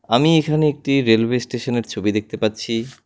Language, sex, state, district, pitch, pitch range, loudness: Bengali, male, West Bengal, Alipurduar, 120 Hz, 110-140 Hz, -19 LUFS